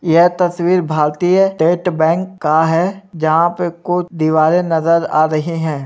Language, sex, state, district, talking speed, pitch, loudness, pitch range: Hindi, male, Uttar Pradesh, Budaun, 165 wpm, 165 Hz, -15 LUFS, 160-180 Hz